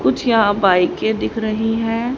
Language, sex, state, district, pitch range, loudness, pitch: Hindi, female, Haryana, Rohtak, 210-225 Hz, -17 LUFS, 225 Hz